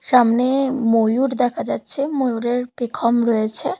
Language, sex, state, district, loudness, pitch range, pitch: Bengali, female, Bihar, Katihar, -19 LUFS, 235-265 Hz, 245 Hz